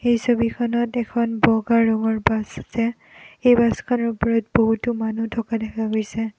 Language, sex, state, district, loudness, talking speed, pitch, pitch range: Assamese, female, Assam, Kamrup Metropolitan, -21 LUFS, 130 wpm, 230 Hz, 225-235 Hz